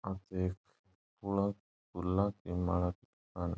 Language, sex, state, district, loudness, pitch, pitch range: Marwari, male, Rajasthan, Nagaur, -36 LUFS, 95 Hz, 90-100 Hz